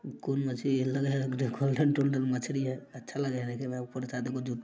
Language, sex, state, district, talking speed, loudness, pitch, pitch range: Maithili, male, Bihar, Samastipur, 195 wpm, -31 LUFS, 130 Hz, 125-135 Hz